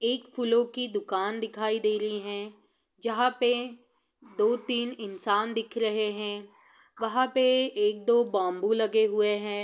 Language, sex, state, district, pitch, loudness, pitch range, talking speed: Hindi, female, Bihar, Sitamarhi, 220 Hz, -28 LUFS, 210-240 Hz, 150 wpm